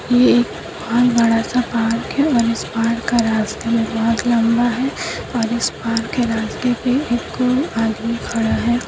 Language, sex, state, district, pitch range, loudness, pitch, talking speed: Hindi, female, Bihar, Kishanganj, 230-245 Hz, -18 LUFS, 235 Hz, 160 wpm